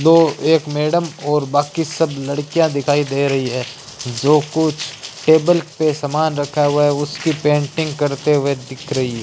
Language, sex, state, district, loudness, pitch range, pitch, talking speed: Hindi, male, Rajasthan, Bikaner, -17 LUFS, 140-155 Hz, 145 Hz, 170 wpm